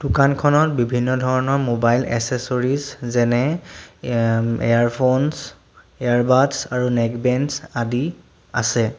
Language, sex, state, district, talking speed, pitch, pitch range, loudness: Assamese, male, Assam, Sonitpur, 100 wpm, 125 Hz, 120-140 Hz, -19 LUFS